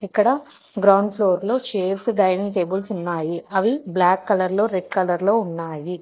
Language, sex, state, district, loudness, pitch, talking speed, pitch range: Telugu, female, Telangana, Hyderabad, -21 LUFS, 195 Hz, 130 wpm, 180-210 Hz